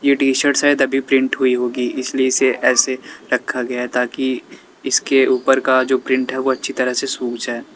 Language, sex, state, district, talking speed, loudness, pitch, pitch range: Hindi, male, Uttar Pradesh, Lalitpur, 195 wpm, -17 LUFS, 130 Hz, 125-135 Hz